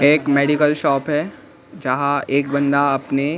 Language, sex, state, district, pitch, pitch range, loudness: Hindi, male, Maharashtra, Mumbai Suburban, 140 Hz, 140-150 Hz, -18 LUFS